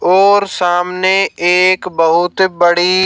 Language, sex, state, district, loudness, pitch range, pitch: Hindi, male, Haryana, Jhajjar, -12 LUFS, 175-190 Hz, 180 Hz